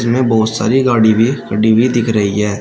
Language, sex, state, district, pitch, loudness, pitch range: Hindi, male, Uttar Pradesh, Shamli, 110 Hz, -13 LUFS, 110-120 Hz